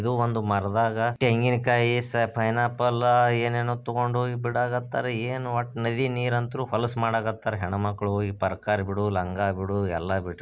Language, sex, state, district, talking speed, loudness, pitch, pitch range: Kannada, male, Karnataka, Bijapur, 85 wpm, -26 LUFS, 115 Hz, 105-120 Hz